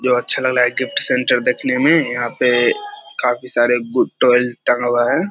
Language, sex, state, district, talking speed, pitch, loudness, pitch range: Hindi, male, Bihar, Vaishali, 205 wpm, 125 Hz, -16 LUFS, 125-205 Hz